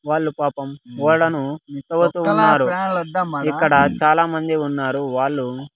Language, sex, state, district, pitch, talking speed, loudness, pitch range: Telugu, male, Andhra Pradesh, Sri Satya Sai, 150 Hz, 75 wpm, -19 LUFS, 140-165 Hz